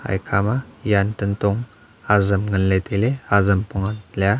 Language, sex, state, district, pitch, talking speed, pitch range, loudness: Wancho, male, Arunachal Pradesh, Longding, 100 Hz, 135 wpm, 100-110 Hz, -20 LUFS